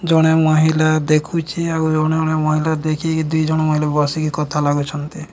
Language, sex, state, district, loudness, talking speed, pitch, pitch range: Odia, male, Odisha, Nuapada, -17 LUFS, 145 wpm, 155 Hz, 155-160 Hz